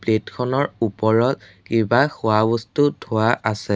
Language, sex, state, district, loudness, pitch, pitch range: Assamese, male, Assam, Sonitpur, -20 LUFS, 115 Hz, 110-125 Hz